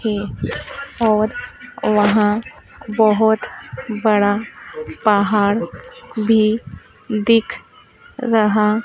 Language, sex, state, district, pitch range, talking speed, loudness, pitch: Hindi, female, Madhya Pradesh, Dhar, 210-230 Hz, 60 wpm, -18 LUFS, 215 Hz